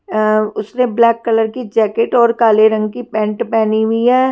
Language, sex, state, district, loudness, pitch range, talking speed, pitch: Hindi, female, Punjab, Kapurthala, -14 LUFS, 215-235 Hz, 195 wpm, 225 Hz